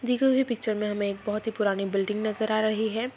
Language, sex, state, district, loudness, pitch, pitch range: Hindi, female, Bihar, Gaya, -27 LUFS, 215 Hz, 210-230 Hz